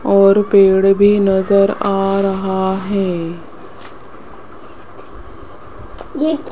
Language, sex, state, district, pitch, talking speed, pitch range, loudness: Hindi, female, Rajasthan, Jaipur, 195 Hz, 65 wpm, 190-200 Hz, -14 LUFS